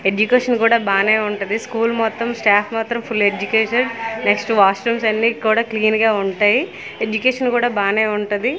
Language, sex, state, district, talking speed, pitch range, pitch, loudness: Telugu, female, Andhra Pradesh, Manyam, 155 wpm, 210-235 Hz, 220 Hz, -17 LUFS